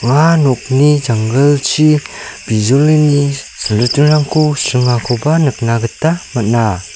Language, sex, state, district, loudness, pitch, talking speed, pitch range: Garo, male, Meghalaya, South Garo Hills, -12 LUFS, 135 Hz, 75 wpm, 115-150 Hz